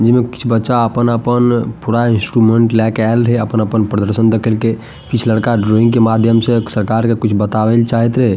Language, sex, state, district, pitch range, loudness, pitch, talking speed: Maithili, male, Bihar, Madhepura, 110-120 Hz, -13 LUFS, 115 Hz, 200 wpm